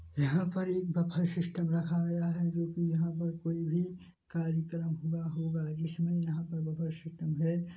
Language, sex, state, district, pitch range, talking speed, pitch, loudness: Hindi, male, Chhattisgarh, Bilaspur, 165-170 Hz, 175 wpm, 170 Hz, -34 LUFS